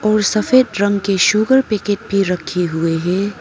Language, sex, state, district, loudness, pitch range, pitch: Hindi, female, Arunachal Pradesh, Papum Pare, -16 LUFS, 185-215 Hz, 205 Hz